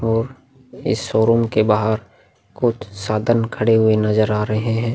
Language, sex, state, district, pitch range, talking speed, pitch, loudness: Hindi, male, Bihar, Vaishali, 110-115 Hz, 155 wpm, 115 Hz, -18 LUFS